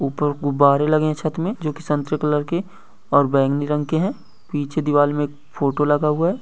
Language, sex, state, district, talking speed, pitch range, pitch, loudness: Hindi, male, Bihar, East Champaran, 225 wpm, 145-155 Hz, 150 Hz, -20 LUFS